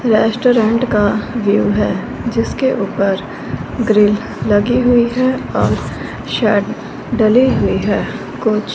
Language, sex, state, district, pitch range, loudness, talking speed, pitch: Hindi, female, Punjab, Fazilka, 210-240 Hz, -15 LUFS, 115 wpm, 225 Hz